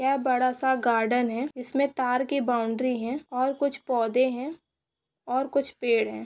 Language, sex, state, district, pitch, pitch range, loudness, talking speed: Hindi, female, Chhattisgarh, Korba, 255 Hz, 245-275 Hz, -26 LUFS, 170 wpm